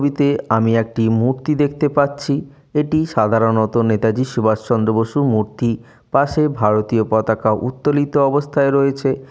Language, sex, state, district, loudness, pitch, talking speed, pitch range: Bengali, male, West Bengal, Jalpaiguri, -17 LUFS, 130 Hz, 120 wpm, 110-145 Hz